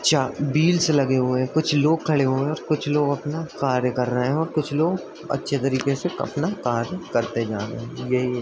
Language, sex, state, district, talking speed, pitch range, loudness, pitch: Hindi, male, Uttar Pradesh, Budaun, 240 wpm, 125-155 Hz, -23 LUFS, 145 Hz